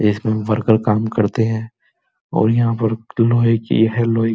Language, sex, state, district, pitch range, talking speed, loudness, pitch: Hindi, male, Uttar Pradesh, Muzaffarnagar, 110-115 Hz, 180 wpm, -17 LUFS, 110 Hz